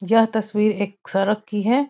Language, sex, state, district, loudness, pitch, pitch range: Hindi, female, Bihar, Muzaffarpur, -21 LUFS, 215 Hz, 205-225 Hz